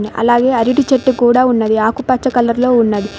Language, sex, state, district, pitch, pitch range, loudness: Telugu, female, Telangana, Mahabubabad, 240 Hz, 225-255 Hz, -13 LUFS